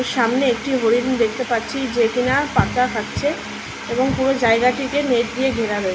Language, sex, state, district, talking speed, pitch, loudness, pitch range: Bengali, female, West Bengal, Malda, 160 wpm, 250 Hz, -19 LUFS, 230-265 Hz